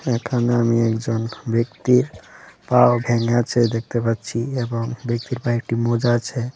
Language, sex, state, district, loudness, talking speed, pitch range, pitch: Bengali, male, Tripura, West Tripura, -20 LUFS, 130 wpm, 115-120 Hz, 120 Hz